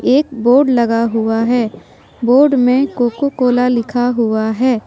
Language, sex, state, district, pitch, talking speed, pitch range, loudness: Hindi, female, Jharkhand, Deoghar, 245 Hz, 150 wpm, 230-255 Hz, -14 LUFS